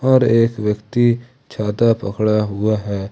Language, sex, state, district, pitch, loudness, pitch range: Hindi, male, Jharkhand, Ranchi, 110 Hz, -18 LUFS, 105-120 Hz